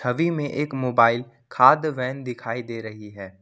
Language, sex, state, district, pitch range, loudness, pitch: Hindi, male, Jharkhand, Ranchi, 115-135 Hz, -22 LUFS, 125 Hz